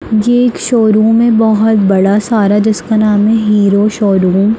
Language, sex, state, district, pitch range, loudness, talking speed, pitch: Hindi, female, Bihar, Darbhanga, 205-225 Hz, -10 LUFS, 170 wpm, 215 Hz